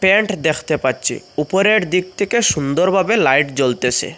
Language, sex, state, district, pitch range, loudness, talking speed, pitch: Bengali, male, Assam, Hailakandi, 140-195 Hz, -16 LUFS, 145 wpm, 180 Hz